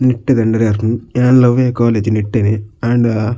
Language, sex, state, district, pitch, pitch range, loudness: Tulu, male, Karnataka, Dakshina Kannada, 115 Hz, 110-125 Hz, -14 LUFS